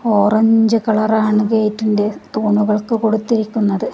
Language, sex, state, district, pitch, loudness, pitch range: Malayalam, female, Kerala, Kasaragod, 215 Hz, -15 LUFS, 210-220 Hz